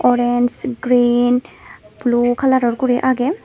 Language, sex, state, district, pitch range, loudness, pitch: Chakma, female, Tripura, Unakoti, 245-255 Hz, -16 LUFS, 245 Hz